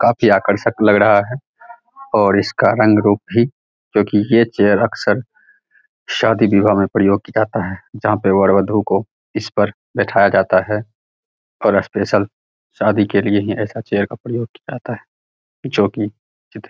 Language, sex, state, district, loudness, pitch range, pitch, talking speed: Hindi, male, Bihar, Araria, -16 LUFS, 100-115 Hz, 105 Hz, 170 wpm